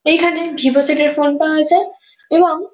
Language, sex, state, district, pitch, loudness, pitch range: Bengali, female, West Bengal, North 24 Parganas, 320 Hz, -14 LUFS, 295-355 Hz